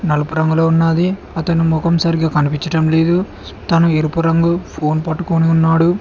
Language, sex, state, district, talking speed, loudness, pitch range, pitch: Telugu, male, Telangana, Mahabubabad, 140 wpm, -15 LUFS, 160-170 Hz, 165 Hz